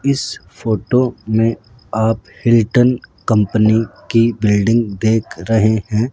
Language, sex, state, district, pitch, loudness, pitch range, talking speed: Hindi, male, Rajasthan, Jaipur, 110 Hz, -16 LUFS, 110-115 Hz, 105 wpm